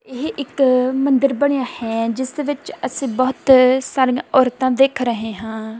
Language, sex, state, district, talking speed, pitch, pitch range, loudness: Punjabi, female, Punjab, Kapurthala, 155 wpm, 260 Hz, 245-270 Hz, -18 LUFS